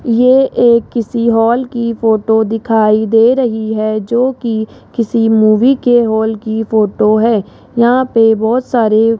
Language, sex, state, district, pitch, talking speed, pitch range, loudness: Hindi, female, Rajasthan, Jaipur, 225 Hz, 150 wpm, 220-240 Hz, -12 LUFS